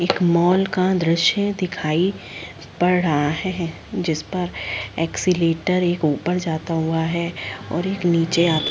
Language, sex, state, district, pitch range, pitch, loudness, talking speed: Hindi, female, Chhattisgarh, Balrampur, 160-180 Hz, 170 Hz, -21 LUFS, 145 wpm